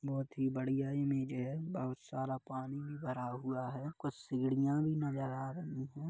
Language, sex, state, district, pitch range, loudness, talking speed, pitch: Hindi, male, Chhattisgarh, Kabirdham, 130-145 Hz, -38 LUFS, 185 wpm, 135 Hz